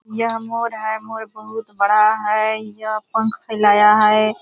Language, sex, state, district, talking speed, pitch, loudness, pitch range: Hindi, female, Bihar, Purnia, 165 wpm, 215 Hz, -17 LUFS, 215-225 Hz